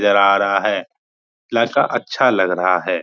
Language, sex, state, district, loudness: Hindi, male, Bihar, Supaul, -17 LUFS